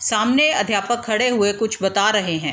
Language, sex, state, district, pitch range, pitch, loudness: Hindi, female, Bihar, Gopalganj, 200-225 Hz, 210 Hz, -18 LUFS